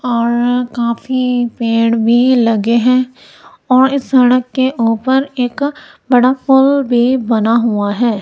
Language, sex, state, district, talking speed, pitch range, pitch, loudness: Hindi, female, Punjab, Kapurthala, 130 wpm, 235-260 Hz, 245 Hz, -13 LUFS